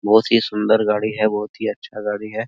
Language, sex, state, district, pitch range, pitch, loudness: Hindi, male, Bihar, Araria, 105-110 Hz, 110 Hz, -19 LUFS